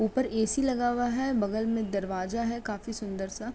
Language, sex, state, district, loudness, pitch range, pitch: Hindi, female, Uttar Pradesh, Etah, -30 LUFS, 205-245 Hz, 225 Hz